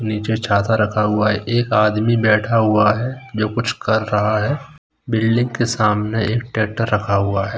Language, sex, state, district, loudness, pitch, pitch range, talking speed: Hindi, male, Odisha, Khordha, -18 LUFS, 110 Hz, 105-115 Hz, 180 wpm